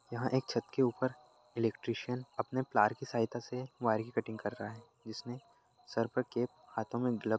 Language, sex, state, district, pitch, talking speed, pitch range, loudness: Hindi, male, Bihar, Lakhisarai, 120 Hz, 195 wpm, 115-125 Hz, -36 LUFS